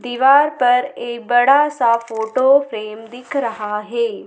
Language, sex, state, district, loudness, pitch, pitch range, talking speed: Hindi, female, Madhya Pradesh, Dhar, -16 LUFS, 245 Hz, 225-275 Hz, 140 wpm